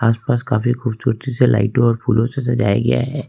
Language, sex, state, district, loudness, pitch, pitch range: Hindi, male, Jharkhand, Ranchi, -17 LUFS, 120 Hz, 115-125 Hz